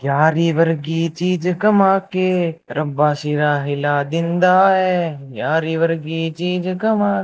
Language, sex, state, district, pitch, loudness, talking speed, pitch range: Hindi, male, Rajasthan, Bikaner, 165 Hz, -18 LUFS, 135 wpm, 150-185 Hz